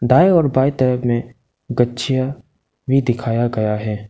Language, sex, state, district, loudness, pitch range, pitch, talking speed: Hindi, male, Arunachal Pradesh, Lower Dibang Valley, -18 LUFS, 120-130 Hz, 125 Hz, 160 wpm